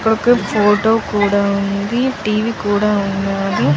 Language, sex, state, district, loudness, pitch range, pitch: Telugu, female, Andhra Pradesh, Chittoor, -16 LUFS, 200-220 Hz, 210 Hz